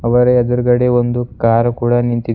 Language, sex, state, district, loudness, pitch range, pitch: Kannada, male, Karnataka, Bidar, -14 LUFS, 120-125 Hz, 120 Hz